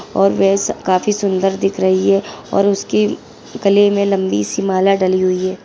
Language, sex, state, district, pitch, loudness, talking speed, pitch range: Hindi, female, Uttarakhand, Tehri Garhwal, 195 Hz, -15 LUFS, 170 wpm, 185-200 Hz